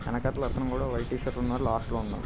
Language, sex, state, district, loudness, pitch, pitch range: Telugu, male, Andhra Pradesh, Krishna, -30 LUFS, 125 Hz, 120-130 Hz